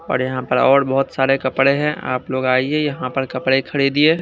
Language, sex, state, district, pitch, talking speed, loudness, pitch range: Hindi, male, Bihar, Kaimur, 135 Hz, 225 wpm, -18 LUFS, 130-140 Hz